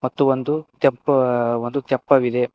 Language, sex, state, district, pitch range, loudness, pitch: Kannada, male, Karnataka, Koppal, 125-140 Hz, -20 LUFS, 130 Hz